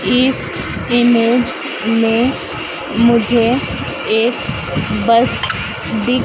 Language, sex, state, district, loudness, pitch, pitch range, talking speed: Hindi, female, Madhya Pradesh, Dhar, -15 LUFS, 235 Hz, 230-245 Hz, 65 wpm